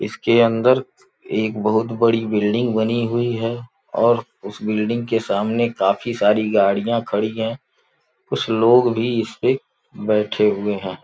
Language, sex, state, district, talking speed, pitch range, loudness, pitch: Hindi, male, Uttar Pradesh, Gorakhpur, 145 wpm, 105-120 Hz, -19 LUFS, 115 Hz